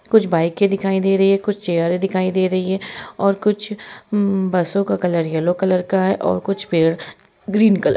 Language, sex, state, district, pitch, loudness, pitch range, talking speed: Hindi, female, Bihar, East Champaran, 190 Hz, -18 LUFS, 180-200 Hz, 205 wpm